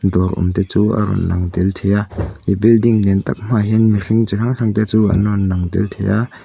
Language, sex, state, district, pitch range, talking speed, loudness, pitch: Mizo, male, Mizoram, Aizawl, 95-110 Hz, 250 wpm, -16 LUFS, 105 Hz